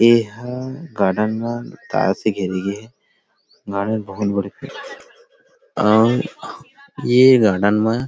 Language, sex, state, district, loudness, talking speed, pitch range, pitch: Chhattisgarhi, male, Chhattisgarh, Rajnandgaon, -19 LUFS, 105 wpm, 105-130 Hz, 115 Hz